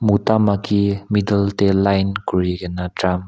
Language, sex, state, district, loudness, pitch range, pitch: Nagamese, male, Nagaland, Kohima, -18 LUFS, 90-100 Hz, 100 Hz